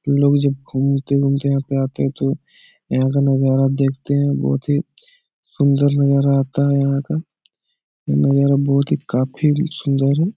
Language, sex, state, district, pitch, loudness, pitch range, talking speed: Hindi, male, Bihar, Jahanabad, 140 Hz, -18 LUFS, 135-140 Hz, 155 wpm